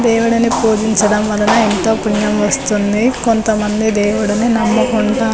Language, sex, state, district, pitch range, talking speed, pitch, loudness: Telugu, female, Telangana, Nalgonda, 210-230 Hz, 110 wpm, 220 Hz, -14 LUFS